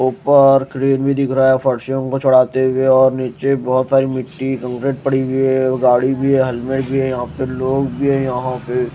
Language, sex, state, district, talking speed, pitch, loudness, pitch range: Hindi, male, Odisha, Malkangiri, 210 wpm, 130 Hz, -16 LUFS, 130-135 Hz